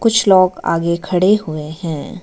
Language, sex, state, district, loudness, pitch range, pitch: Hindi, female, Arunachal Pradesh, Lower Dibang Valley, -16 LUFS, 160-200 Hz, 180 Hz